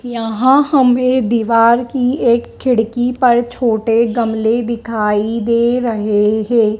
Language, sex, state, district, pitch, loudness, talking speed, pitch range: Hindi, female, Madhya Pradesh, Dhar, 235 Hz, -14 LUFS, 115 wpm, 225-245 Hz